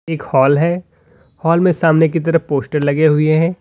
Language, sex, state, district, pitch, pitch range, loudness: Hindi, male, Uttar Pradesh, Lalitpur, 160 Hz, 150-165 Hz, -15 LUFS